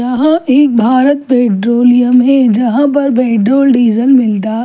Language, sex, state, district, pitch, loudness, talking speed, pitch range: Hindi, female, Delhi, New Delhi, 250 Hz, -10 LUFS, 115 wpm, 235-270 Hz